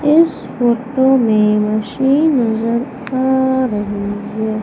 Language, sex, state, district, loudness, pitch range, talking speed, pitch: Hindi, female, Madhya Pradesh, Umaria, -15 LUFS, 215-265 Hz, 90 wpm, 240 Hz